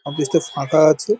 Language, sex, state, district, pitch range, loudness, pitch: Bengali, male, West Bengal, Paschim Medinipur, 145-165 Hz, -17 LUFS, 155 Hz